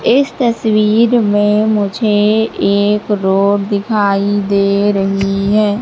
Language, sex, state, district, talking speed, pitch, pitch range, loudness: Hindi, female, Madhya Pradesh, Katni, 105 wpm, 205 Hz, 200-215 Hz, -13 LUFS